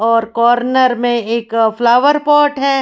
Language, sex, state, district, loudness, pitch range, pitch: Hindi, female, Haryana, Jhajjar, -13 LUFS, 230-270 Hz, 240 Hz